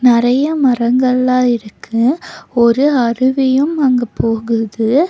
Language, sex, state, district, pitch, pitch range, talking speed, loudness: Tamil, female, Tamil Nadu, Nilgiris, 250 Hz, 235-265 Hz, 80 wpm, -14 LUFS